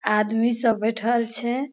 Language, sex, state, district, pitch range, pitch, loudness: Maithili, female, Bihar, Madhepura, 220-240 Hz, 230 Hz, -23 LUFS